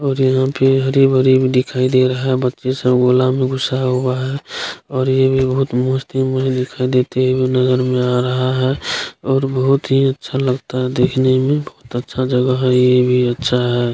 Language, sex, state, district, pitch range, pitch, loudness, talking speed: Hindi, male, Bihar, Jahanabad, 125-130 Hz, 130 Hz, -16 LUFS, 200 wpm